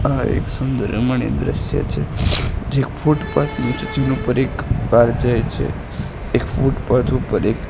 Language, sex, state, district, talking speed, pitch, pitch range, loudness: Gujarati, male, Gujarat, Gandhinagar, 165 wpm, 125 Hz, 120-135 Hz, -19 LUFS